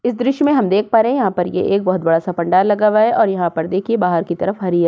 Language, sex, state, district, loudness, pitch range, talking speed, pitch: Hindi, female, Uttar Pradesh, Jyotiba Phule Nagar, -16 LUFS, 175-225 Hz, 320 wpm, 190 Hz